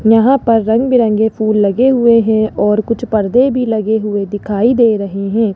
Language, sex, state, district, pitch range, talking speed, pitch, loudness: Hindi, male, Rajasthan, Jaipur, 210-235 Hz, 195 wpm, 220 Hz, -13 LUFS